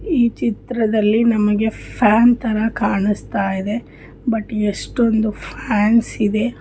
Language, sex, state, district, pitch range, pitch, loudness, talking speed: Kannada, female, Karnataka, Bijapur, 210-235 Hz, 220 Hz, -18 LUFS, 75 wpm